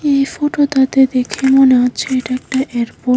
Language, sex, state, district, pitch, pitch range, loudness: Bengali, female, Tripura, West Tripura, 265 Hz, 255-270 Hz, -14 LUFS